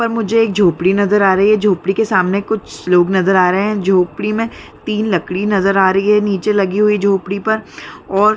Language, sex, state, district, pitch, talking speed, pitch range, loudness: Hindi, female, Chhattisgarh, Bilaspur, 200 Hz, 230 wpm, 190-210 Hz, -14 LUFS